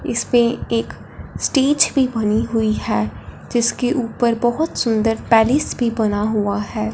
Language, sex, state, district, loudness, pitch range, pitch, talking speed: Hindi, female, Punjab, Fazilka, -18 LUFS, 215-240 Hz, 230 Hz, 140 wpm